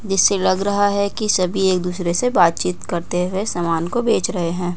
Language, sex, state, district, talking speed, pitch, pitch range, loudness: Hindi, female, Delhi, New Delhi, 215 wpm, 185 Hz, 175-200 Hz, -19 LUFS